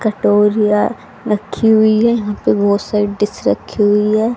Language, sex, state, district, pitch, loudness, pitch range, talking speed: Hindi, female, Haryana, Rohtak, 210 Hz, -14 LUFS, 205-220 Hz, 165 wpm